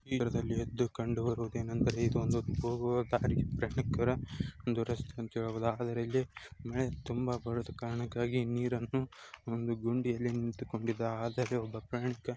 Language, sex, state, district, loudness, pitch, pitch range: Kannada, male, Karnataka, Mysore, -35 LUFS, 120 Hz, 115-125 Hz